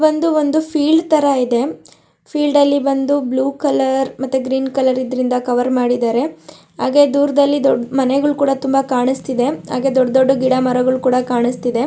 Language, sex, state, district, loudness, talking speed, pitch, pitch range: Kannada, male, Karnataka, Shimoga, -16 LUFS, 140 wpm, 265 Hz, 255-285 Hz